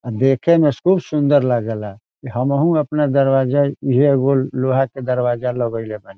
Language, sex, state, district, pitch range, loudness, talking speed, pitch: Bhojpuri, male, Bihar, Saran, 125-145 Hz, -17 LUFS, 155 wpm, 135 Hz